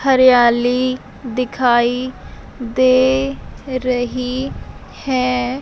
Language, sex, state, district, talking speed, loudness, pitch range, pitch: Hindi, female, Punjab, Fazilka, 55 wpm, -17 LUFS, 245-260 Hz, 255 Hz